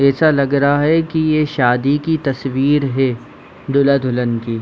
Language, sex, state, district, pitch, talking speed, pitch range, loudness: Hindi, female, Chhattisgarh, Bilaspur, 140 Hz, 180 wpm, 130-150 Hz, -16 LUFS